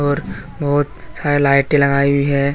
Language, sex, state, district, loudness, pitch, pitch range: Hindi, male, Jharkhand, Deoghar, -16 LUFS, 140 Hz, 140-145 Hz